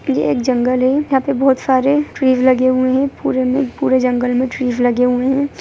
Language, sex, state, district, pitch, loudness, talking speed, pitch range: Hindi, male, Bihar, Gaya, 260 Hz, -15 LUFS, 225 wpm, 255-270 Hz